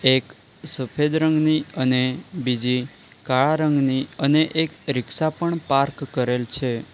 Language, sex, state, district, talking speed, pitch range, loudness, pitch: Gujarati, male, Gujarat, Valsad, 120 wpm, 130-155 Hz, -22 LUFS, 140 Hz